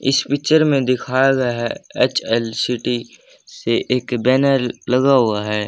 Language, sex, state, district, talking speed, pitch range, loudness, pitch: Hindi, male, Haryana, Jhajjar, 145 wpm, 120-135 Hz, -18 LUFS, 125 Hz